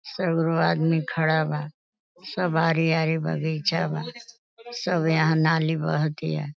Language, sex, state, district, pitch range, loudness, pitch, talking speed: Bhojpuri, female, Uttar Pradesh, Deoria, 155-165 Hz, -24 LUFS, 160 Hz, 110 wpm